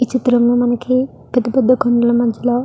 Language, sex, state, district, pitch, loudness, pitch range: Telugu, female, Andhra Pradesh, Guntur, 245 Hz, -15 LUFS, 240-255 Hz